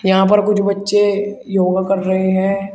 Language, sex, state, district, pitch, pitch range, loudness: Hindi, male, Uttar Pradesh, Shamli, 195 Hz, 190-205 Hz, -16 LUFS